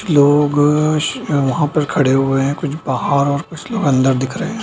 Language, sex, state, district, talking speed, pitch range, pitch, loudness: Hindi, male, Bihar, Darbhanga, 205 wpm, 135-150 Hz, 145 Hz, -16 LUFS